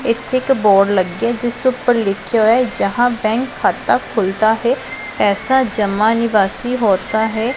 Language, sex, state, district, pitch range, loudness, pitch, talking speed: Punjabi, female, Punjab, Pathankot, 205-245 Hz, -16 LUFS, 230 Hz, 160 wpm